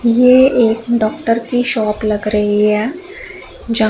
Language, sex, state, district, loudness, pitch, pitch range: Hindi, female, Punjab, Pathankot, -14 LUFS, 230 Hz, 215-250 Hz